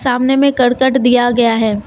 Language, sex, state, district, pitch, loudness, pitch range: Hindi, female, Jharkhand, Deoghar, 245 Hz, -12 LUFS, 240-260 Hz